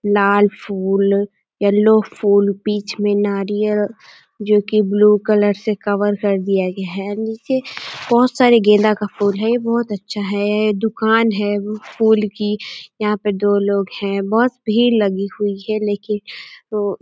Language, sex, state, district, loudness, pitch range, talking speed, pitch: Hindi, female, Uttar Pradesh, Deoria, -17 LUFS, 200-215 Hz, 150 wpm, 210 Hz